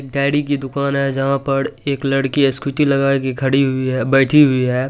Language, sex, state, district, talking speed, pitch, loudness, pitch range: Hindi, male, Bihar, Supaul, 210 wpm, 135 Hz, -17 LUFS, 135-140 Hz